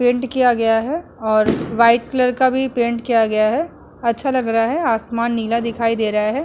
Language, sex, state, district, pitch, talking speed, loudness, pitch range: Hindi, female, Uttar Pradesh, Muzaffarnagar, 235 Hz, 215 wpm, -18 LUFS, 225-255 Hz